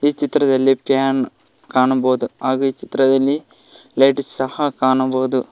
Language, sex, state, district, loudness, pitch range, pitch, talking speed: Kannada, male, Karnataka, Koppal, -18 LUFS, 130-140 Hz, 135 Hz, 110 wpm